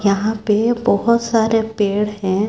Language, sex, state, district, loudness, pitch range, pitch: Hindi, female, Chhattisgarh, Raipur, -17 LUFS, 205-225 Hz, 215 Hz